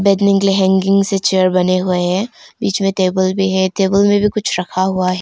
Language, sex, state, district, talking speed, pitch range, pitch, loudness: Hindi, female, Arunachal Pradesh, Longding, 240 wpm, 185-195 Hz, 190 Hz, -15 LUFS